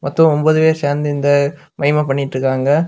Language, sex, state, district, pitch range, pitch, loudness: Tamil, male, Tamil Nadu, Kanyakumari, 140-155 Hz, 145 Hz, -15 LUFS